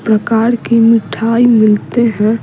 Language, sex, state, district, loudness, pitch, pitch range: Hindi, female, Bihar, Patna, -11 LUFS, 230 Hz, 215-235 Hz